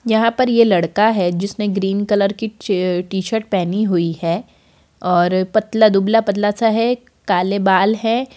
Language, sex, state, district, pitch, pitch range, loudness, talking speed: Hindi, female, Bihar, Samastipur, 205 Hz, 185-225 Hz, -17 LUFS, 170 wpm